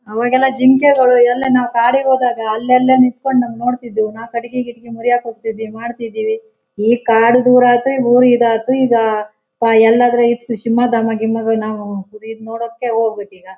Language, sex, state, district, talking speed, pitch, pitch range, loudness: Kannada, female, Karnataka, Shimoga, 140 wpm, 235 Hz, 225-250 Hz, -14 LUFS